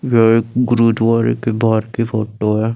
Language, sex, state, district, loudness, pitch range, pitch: Hindi, male, Chandigarh, Chandigarh, -15 LUFS, 110-115 Hz, 115 Hz